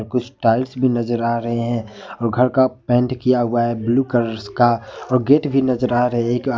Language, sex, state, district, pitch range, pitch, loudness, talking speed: Hindi, male, Jharkhand, Ranchi, 115-125 Hz, 120 Hz, -19 LUFS, 220 wpm